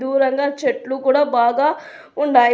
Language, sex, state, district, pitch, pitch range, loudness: Telugu, female, Telangana, Hyderabad, 275 Hz, 265-295 Hz, -18 LUFS